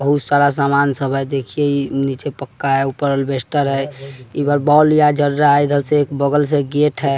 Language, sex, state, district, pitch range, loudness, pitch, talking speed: Hindi, male, Bihar, West Champaran, 135-145 Hz, -16 LUFS, 140 Hz, 185 wpm